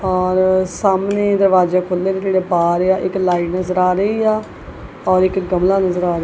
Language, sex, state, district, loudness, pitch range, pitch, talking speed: Punjabi, female, Punjab, Kapurthala, -16 LUFS, 180-190 Hz, 185 Hz, 190 wpm